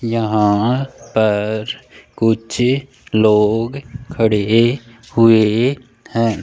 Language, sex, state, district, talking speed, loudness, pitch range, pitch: Hindi, male, Rajasthan, Jaipur, 65 wpm, -16 LUFS, 110-125 Hz, 115 Hz